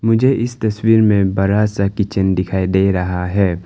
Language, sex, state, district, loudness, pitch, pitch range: Hindi, male, Arunachal Pradesh, Longding, -16 LUFS, 100 Hz, 95-110 Hz